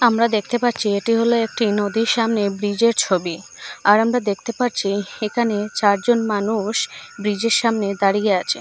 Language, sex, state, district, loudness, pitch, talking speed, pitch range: Bengali, female, Assam, Hailakandi, -19 LUFS, 215 Hz, 145 wpm, 205-230 Hz